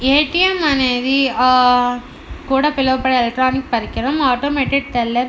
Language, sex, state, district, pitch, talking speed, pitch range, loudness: Telugu, female, Andhra Pradesh, Anantapur, 260 Hz, 135 wpm, 245-280 Hz, -16 LUFS